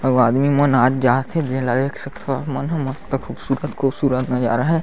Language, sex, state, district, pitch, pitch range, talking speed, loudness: Chhattisgarhi, male, Chhattisgarh, Sarguja, 135 Hz, 125-140 Hz, 175 wpm, -20 LUFS